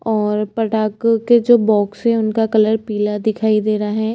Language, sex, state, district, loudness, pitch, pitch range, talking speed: Hindi, female, Uttar Pradesh, Jyotiba Phule Nagar, -16 LUFS, 220 Hz, 210-225 Hz, 190 wpm